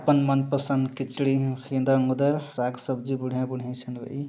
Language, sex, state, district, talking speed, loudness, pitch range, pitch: Sadri, male, Chhattisgarh, Jashpur, 140 wpm, -26 LUFS, 130-140 Hz, 135 Hz